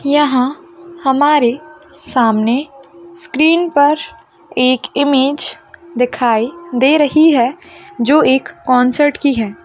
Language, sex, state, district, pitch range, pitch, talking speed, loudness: Hindi, female, Bihar, Madhepura, 250-310 Hz, 285 Hz, 100 wpm, -14 LUFS